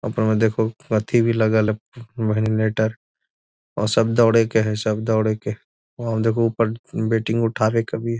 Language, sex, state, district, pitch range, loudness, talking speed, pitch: Magahi, male, Bihar, Gaya, 110-115 Hz, -21 LUFS, 145 wpm, 110 Hz